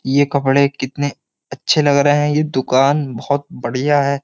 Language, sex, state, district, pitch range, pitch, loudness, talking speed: Hindi, male, Uttar Pradesh, Jyotiba Phule Nagar, 135-145 Hz, 140 Hz, -16 LUFS, 170 wpm